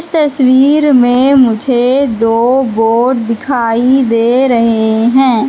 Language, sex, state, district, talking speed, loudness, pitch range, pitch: Hindi, female, Madhya Pradesh, Katni, 100 wpm, -10 LUFS, 230-265 Hz, 250 Hz